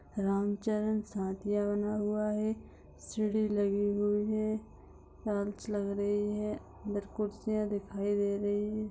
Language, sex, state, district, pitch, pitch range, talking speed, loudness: Hindi, female, Bihar, Lakhisarai, 205 Hz, 205-215 Hz, 135 wpm, -33 LUFS